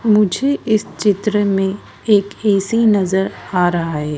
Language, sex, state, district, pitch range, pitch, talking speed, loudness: Hindi, female, Madhya Pradesh, Dhar, 190-215 Hz, 200 Hz, 145 wpm, -16 LUFS